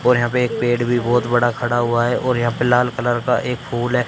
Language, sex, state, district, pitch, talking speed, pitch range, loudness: Hindi, male, Haryana, Charkhi Dadri, 120 Hz, 295 wpm, 120-125 Hz, -18 LUFS